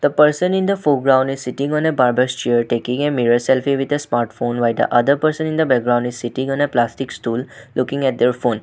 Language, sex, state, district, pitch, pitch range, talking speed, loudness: English, male, Assam, Sonitpur, 130 Hz, 120-145 Hz, 245 wpm, -18 LUFS